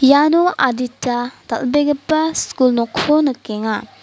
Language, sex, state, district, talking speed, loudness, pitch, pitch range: Garo, female, Meghalaya, West Garo Hills, 90 wpm, -17 LUFS, 265 Hz, 245-300 Hz